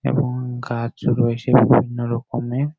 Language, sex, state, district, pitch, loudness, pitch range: Bengali, male, West Bengal, Jhargram, 120 Hz, -20 LUFS, 120-125 Hz